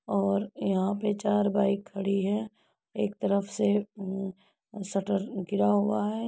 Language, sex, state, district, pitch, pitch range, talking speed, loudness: Hindi, female, Uttar Pradesh, Etah, 200 Hz, 195-205 Hz, 145 wpm, -29 LUFS